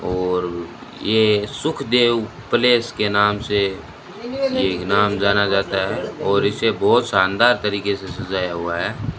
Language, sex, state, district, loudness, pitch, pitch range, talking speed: Hindi, male, Rajasthan, Bikaner, -19 LUFS, 105 Hz, 95-120 Hz, 145 wpm